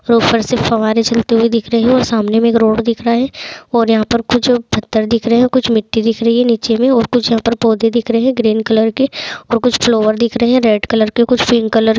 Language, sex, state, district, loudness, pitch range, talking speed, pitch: Hindi, female, Bihar, Bhagalpur, -13 LUFS, 225-240 Hz, 260 wpm, 230 Hz